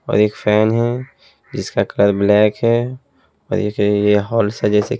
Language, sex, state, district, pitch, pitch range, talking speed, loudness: Hindi, male, Haryana, Jhajjar, 105 Hz, 105-115 Hz, 170 wpm, -17 LUFS